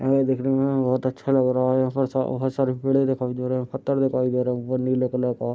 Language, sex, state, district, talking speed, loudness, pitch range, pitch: Hindi, male, Bihar, Madhepura, 325 wpm, -23 LUFS, 125-135 Hz, 130 Hz